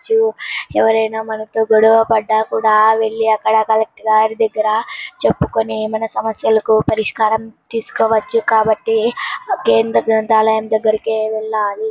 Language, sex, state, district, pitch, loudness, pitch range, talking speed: Telugu, female, Andhra Pradesh, Anantapur, 220 Hz, -15 LUFS, 220-225 Hz, 100 wpm